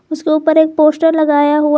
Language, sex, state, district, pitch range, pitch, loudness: Hindi, female, Jharkhand, Garhwa, 300-315 Hz, 310 Hz, -12 LUFS